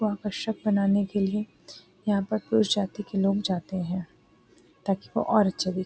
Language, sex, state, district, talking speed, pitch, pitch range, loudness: Hindi, female, Uttar Pradesh, Varanasi, 175 wpm, 200 Hz, 185-210 Hz, -27 LUFS